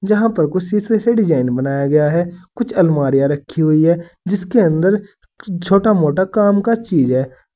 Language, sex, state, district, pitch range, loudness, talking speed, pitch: Hindi, male, Uttar Pradesh, Saharanpur, 155-210 Hz, -16 LUFS, 185 wpm, 180 Hz